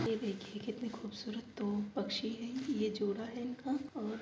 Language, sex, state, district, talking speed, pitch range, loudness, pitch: Hindi, female, Uttar Pradesh, Jalaun, 185 wpm, 210-240 Hz, -39 LUFS, 225 Hz